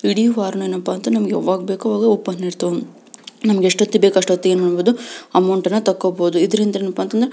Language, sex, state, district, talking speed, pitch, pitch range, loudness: Kannada, female, Karnataka, Belgaum, 165 wpm, 195 Hz, 185-215 Hz, -17 LUFS